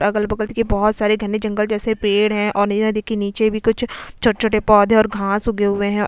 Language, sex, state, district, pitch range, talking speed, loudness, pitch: Hindi, female, Goa, North and South Goa, 205-220 Hz, 215 wpm, -18 LUFS, 215 Hz